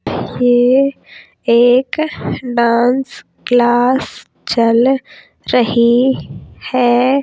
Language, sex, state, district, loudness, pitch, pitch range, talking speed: Hindi, female, Uttar Pradesh, Hamirpur, -14 LUFS, 245 Hz, 240-265 Hz, 60 wpm